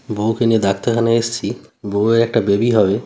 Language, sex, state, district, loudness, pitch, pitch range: Bengali, male, West Bengal, North 24 Parganas, -17 LUFS, 115 Hz, 100-115 Hz